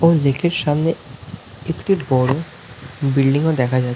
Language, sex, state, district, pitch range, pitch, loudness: Bengali, male, West Bengal, North 24 Parganas, 130-165 Hz, 140 Hz, -19 LUFS